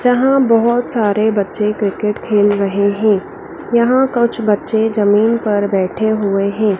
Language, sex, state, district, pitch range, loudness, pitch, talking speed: Hindi, female, Madhya Pradesh, Dhar, 205-235 Hz, -15 LUFS, 215 Hz, 140 wpm